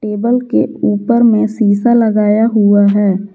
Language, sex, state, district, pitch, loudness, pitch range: Hindi, female, Jharkhand, Garhwa, 215 Hz, -12 LUFS, 205-230 Hz